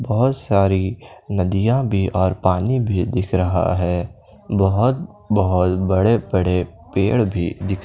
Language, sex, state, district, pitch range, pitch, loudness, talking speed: Hindi, male, Bihar, Kaimur, 90-110 Hz, 95 Hz, -19 LUFS, 130 wpm